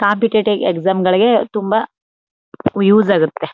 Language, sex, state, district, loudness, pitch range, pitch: Kannada, female, Karnataka, Chamarajanagar, -15 LUFS, 190-220 Hz, 205 Hz